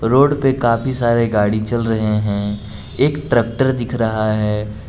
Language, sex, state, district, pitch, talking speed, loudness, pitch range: Hindi, male, Jharkhand, Garhwa, 115 Hz, 160 wpm, -17 LUFS, 105-125 Hz